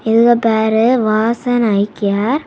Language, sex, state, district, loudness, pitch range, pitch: Tamil, female, Tamil Nadu, Kanyakumari, -14 LUFS, 215-240 Hz, 225 Hz